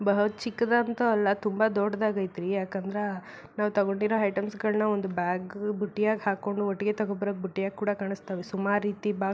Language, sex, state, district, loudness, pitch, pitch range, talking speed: Kannada, female, Karnataka, Belgaum, -28 LUFS, 205 Hz, 195-210 Hz, 150 wpm